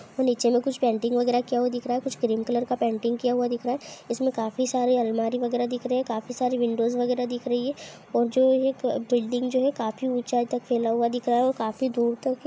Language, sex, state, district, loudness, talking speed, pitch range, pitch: Hindi, female, Andhra Pradesh, Anantapur, -25 LUFS, 265 wpm, 240-255 Hz, 245 Hz